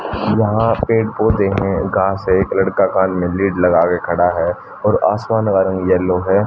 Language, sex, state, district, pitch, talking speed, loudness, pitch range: Hindi, male, Haryana, Jhajjar, 95 Hz, 185 wpm, -16 LUFS, 90-105 Hz